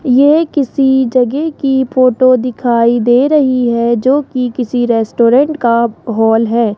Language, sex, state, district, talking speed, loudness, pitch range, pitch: Hindi, male, Rajasthan, Jaipur, 140 wpm, -12 LUFS, 235-270 Hz, 250 Hz